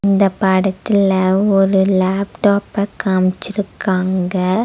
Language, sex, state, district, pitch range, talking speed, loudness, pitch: Tamil, female, Tamil Nadu, Nilgiris, 185-200 Hz, 65 wpm, -16 LUFS, 195 Hz